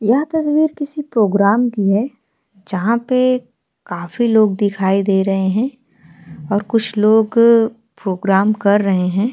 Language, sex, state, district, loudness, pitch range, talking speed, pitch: Hindi, female, Bihar, Vaishali, -16 LUFS, 195-235 Hz, 135 wpm, 215 Hz